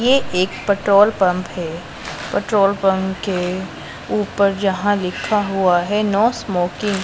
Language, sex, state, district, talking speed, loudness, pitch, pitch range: Hindi, female, Punjab, Pathankot, 135 wpm, -18 LUFS, 195 Hz, 185-205 Hz